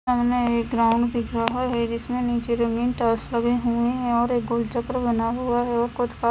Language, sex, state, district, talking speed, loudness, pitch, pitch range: Hindi, female, Himachal Pradesh, Shimla, 210 wpm, -23 LUFS, 235 Hz, 235-245 Hz